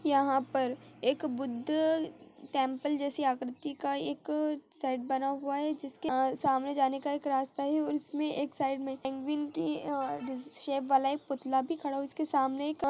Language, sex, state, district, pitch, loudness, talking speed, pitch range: Hindi, female, Chhattisgarh, Kabirdham, 280 Hz, -33 LUFS, 165 wpm, 270-295 Hz